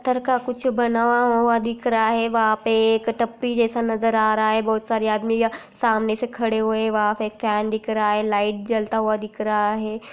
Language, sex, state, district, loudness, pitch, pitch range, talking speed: Hindi, female, Chhattisgarh, Raigarh, -21 LUFS, 225 Hz, 215-235 Hz, 220 wpm